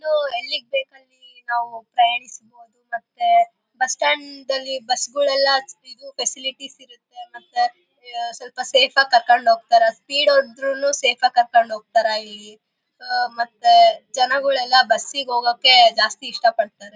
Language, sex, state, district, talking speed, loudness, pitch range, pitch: Kannada, female, Karnataka, Bellary, 115 wpm, -18 LUFS, 240-310 Hz, 265 Hz